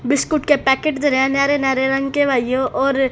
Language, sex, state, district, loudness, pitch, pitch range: Hindi, female, Haryana, Rohtak, -17 LUFS, 275 Hz, 265-285 Hz